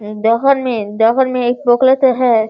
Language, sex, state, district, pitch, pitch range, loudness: Hindi, female, Bihar, Sitamarhi, 245 Hz, 225-260 Hz, -13 LUFS